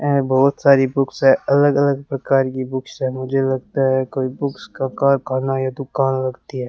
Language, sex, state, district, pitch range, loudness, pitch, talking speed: Hindi, male, Rajasthan, Bikaner, 130-140 Hz, -18 LUFS, 135 Hz, 195 wpm